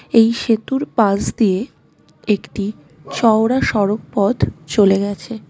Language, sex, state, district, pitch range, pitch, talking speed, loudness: Bengali, female, West Bengal, Darjeeling, 200-230 Hz, 215 Hz, 110 wpm, -17 LUFS